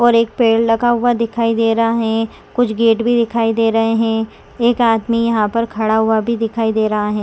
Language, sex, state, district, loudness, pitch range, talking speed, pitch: Hindi, female, Chhattisgarh, Raigarh, -15 LUFS, 225-230 Hz, 225 wpm, 225 Hz